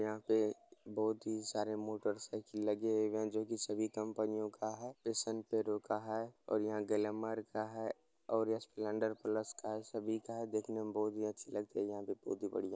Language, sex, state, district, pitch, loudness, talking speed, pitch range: Hindi, male, Bihar, Gopalganj, 110 Hz, -40 LUFS, 210 wpm, 105-110 Hz